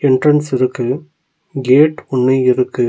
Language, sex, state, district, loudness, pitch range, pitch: Tamil, male, Tamil Nadu, Nilgiris, -14 LUFS, 125-150 Hz, 130 Hz